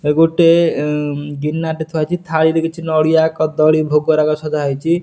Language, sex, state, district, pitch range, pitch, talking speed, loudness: Odia, male, Odisha, Nuapada, 150-160 Hz, 155 Hz, 180 wpm, -15 LUFS